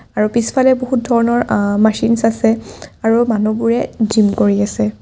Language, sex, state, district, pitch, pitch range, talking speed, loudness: Assamese, female, Assam, Kamrup Metropolitan, 225 Hz, 210-235 Hz, 145 wpm, -15 LUFS